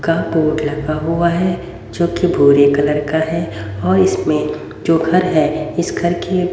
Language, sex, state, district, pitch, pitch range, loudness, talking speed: Hindi, female, Haryana, Rohtak, 160 Hz, 150-170 Hz, -16 LUFS, 185 wpm